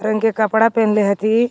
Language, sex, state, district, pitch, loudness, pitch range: Magahi, female, Jharkhand, Palamu, 220 Hz, -16 LUFS, 215-225 Hz